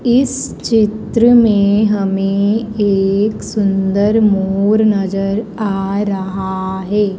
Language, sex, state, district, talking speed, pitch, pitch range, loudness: Hindi, female, Madhya Pradesh, Dhar, 90 wpm, 205 Hz, 195-215 Hz, -14 LUFS